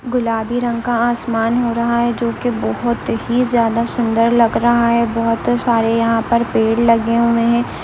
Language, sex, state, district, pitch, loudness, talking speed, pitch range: Hindi, female, Andhra Pradesh, Visakhapatnam, 235 Hz, -16 LUFS, 185 wpm, 230-240 Hz